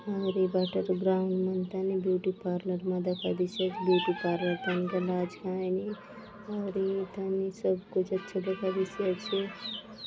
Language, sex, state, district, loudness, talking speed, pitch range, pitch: Halbi, female, Chhattisgarh, Bastar, -31 LUFS, 160 wpm, 185-195 Hz, 185 Hz